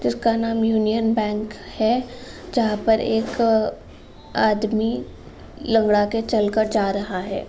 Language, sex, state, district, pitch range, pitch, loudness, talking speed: Hindi, female, Uttar Pradesh, Jalaun, 210-230 Hz, 220 Hz, -21 LUFS, 110 wpm